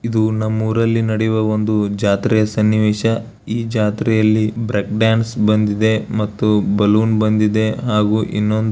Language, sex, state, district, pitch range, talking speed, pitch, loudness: Kannada, male, Karnataka, Bellary, 105-110 Hz, 125 wpm, 110 Hz, -17 LUFS